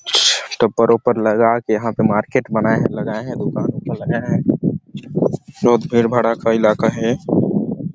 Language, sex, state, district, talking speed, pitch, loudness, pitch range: Hindi, male, Chhattisgarh, Sarguja, 160 wpm, 115 Hz, -17 LUFS, 110-120 Hz